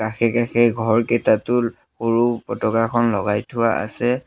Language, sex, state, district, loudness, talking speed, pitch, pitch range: Assamese, male, Assam, Sonitpur, -19 LUFS, 110 wpm, 115 Hz, 110-120 Hz